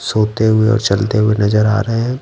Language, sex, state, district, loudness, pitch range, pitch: Hindi, male, Bihar, Patna, -14 LUFS, 105-115 Hz, 110 Hz